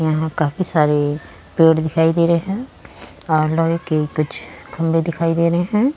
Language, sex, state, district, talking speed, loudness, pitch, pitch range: Hindi, female, Uttar Pradesh, Muzaffarnagar, 170 wpm, -18 LUFS, 165 Hz, 155-170 Hz